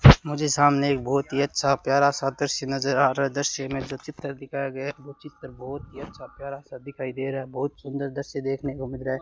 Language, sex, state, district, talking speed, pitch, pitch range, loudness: Hindi, male, Rajasthan, Bikaner, 245 wpm, 140 Hz, 135-140 Hz, -25 LUFS